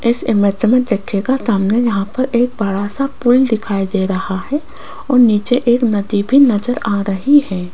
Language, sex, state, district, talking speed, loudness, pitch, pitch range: Hindi, female, Rajasthan, Jaipur, 185 wpm, -15 LUFS, 230 Hz, 200-255 Hz